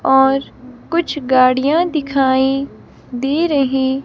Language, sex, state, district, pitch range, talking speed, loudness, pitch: Hindi, female, Himachal Pradesh, Shimla, 265-290 Hz, 105 wpm, -16 LUFS, 270 Hz